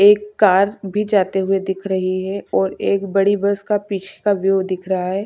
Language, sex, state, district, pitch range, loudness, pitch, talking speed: Hindi, female, Chhattisgarh, Sukma, 190-200 Hz, -18 LUFS, 195 Hz, 215 wpm